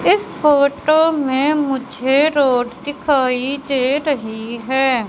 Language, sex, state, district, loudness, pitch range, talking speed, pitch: Hindi, female, Madhya Pradesh, Katni, -17 LUFS, 255-295 Hz, 105 wpm, 270 Hz